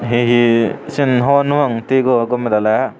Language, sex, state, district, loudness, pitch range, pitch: Chakma, male, Tripura, Unakoti, -15 LUFS, 115-140 Hz, 120 Hz